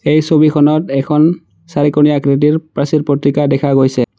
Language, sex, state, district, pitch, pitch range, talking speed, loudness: Assamese, male, Assam, Sonitpur, 145 Hz, 140-155 Hz, 130 wpm, -12 LUFS